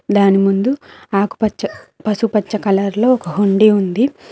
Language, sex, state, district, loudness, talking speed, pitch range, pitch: Telugu, female, Telangana, Mahabubabad, -16 LUFS, 125 wpm, 195-220 Hz, 205 Hz